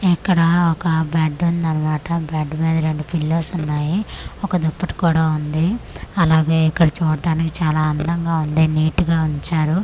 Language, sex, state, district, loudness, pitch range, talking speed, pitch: Telugu, female, Andhra Pradesh, Manyam, -19 LUFS, 155-170 Hz, 140 wpm, 160 Hz